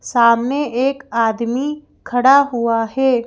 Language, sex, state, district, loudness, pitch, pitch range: Hindi, female, Madhya Pradesh, Bhopal, -16 LUFS, 245 Hz, 235-275 Hz